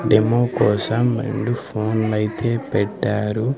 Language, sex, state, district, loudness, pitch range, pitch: Telugu, male, Andhra Pradesh, Sri Satya Sai, -20 LUFS, 105-120 Hz, 110 Hz